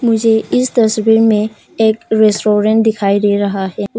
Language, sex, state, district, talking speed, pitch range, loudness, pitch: Hindi, female, Arunachal Pradesh, Papum Pare, 165 wpm, 205-225 Hz, -13 LUFS, 220 Hz